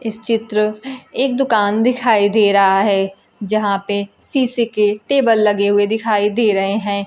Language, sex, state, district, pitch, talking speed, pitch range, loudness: Hindi, female, Bihar, Kaimur, 215 Hz, 160 wpm, 205-230 Hz, -15 LUFS